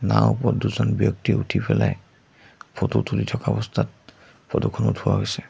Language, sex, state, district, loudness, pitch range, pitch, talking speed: Assamese, male, Assam, Sonitpur, -23 LUFS, 105-130 Hz, 120 Hz, 140 wpm